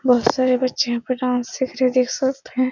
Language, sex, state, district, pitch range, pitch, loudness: Hindi, female, Bihar, Supaul, 245-255 Hz, 255 Hz, -20 LUFS